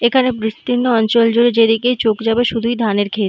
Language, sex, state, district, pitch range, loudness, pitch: Bengali, female, West Bengal, North 24 Parganas, 220-245 Hz, -15 LUFS, 230 Hz